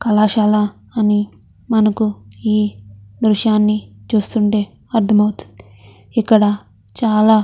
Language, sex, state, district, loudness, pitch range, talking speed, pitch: Telugu, female, Andhra Pradesh, Chittoor, -16 LUFS, 200-215 Hz, 80 wpm, 210 Hz